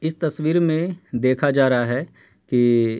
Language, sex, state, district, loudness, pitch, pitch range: Hindi, male, Uttar Pradesh, Hamirpur, -20 LUFS, 140 Hz, 125-160 Hz